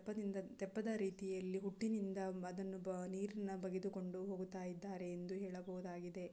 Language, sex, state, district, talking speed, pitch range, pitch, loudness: Kannada, female, Karnataka, Raichur, 105 wpm, 185-195 Hz, 190 Hz, -45 LUFS